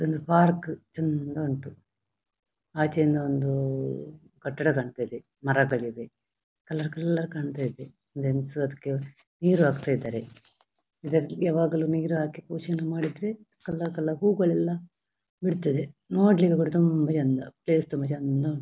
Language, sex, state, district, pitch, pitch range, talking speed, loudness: Kannada, female, Karnataka, Dakshina Kannada, 155 Hz, 135-165 Hz, 115 wpm, -27 LUFS